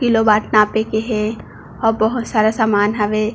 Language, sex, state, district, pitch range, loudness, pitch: Chhattisgarhi, female, Chhattisgarh, Bilaspur, 215-225 Hz, -17 LUFS, 220 Hz